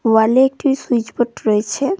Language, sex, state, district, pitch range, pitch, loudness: Bengali, female, West Bengal, Cooch Behar, 220-270 Hz, 240 Hz, -17 LUFS